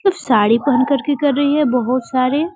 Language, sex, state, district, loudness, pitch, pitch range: Hindi, female, Bihar, Gopalganj, -16 LUFS, 280 Hz, 255-290 Hz